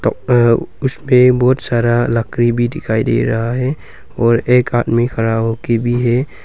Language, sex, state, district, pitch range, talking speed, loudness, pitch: Hindi, male, Arunachal Pradesh, Longding, 115-125 Hz, 160 wpm, -15 LUFS, 120 Hz